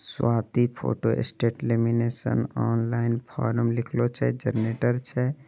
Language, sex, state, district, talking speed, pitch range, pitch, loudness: Angika, male, Bihar, Begusarai, 130 wpm, 115-125 Hz, 115 Hz, -26 LUFS